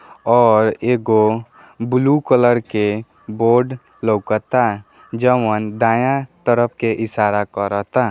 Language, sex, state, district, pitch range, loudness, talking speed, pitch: Bhojpuri, male, Bihar, East Champaran, 110-125 Hz, -17 LUFS, 95 wpm, 115 Hz